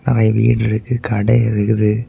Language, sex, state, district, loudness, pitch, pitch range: Tamil, male, Tamil Nadu, Kanyakumari, -16 LUFS, 110 Hz, 110-115 Hz